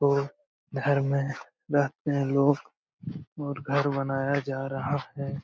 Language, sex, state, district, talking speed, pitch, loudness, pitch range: Hindi, male, Bihar, Lakhisarai, 145 wpm, 140 Hz, -28 LUFS, 140-145 Hz